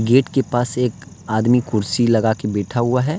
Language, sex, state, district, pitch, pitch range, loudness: Hindi, male, Jharkhand, Deoghar, 120 Hz, 110-125 Hz, -18 LUFS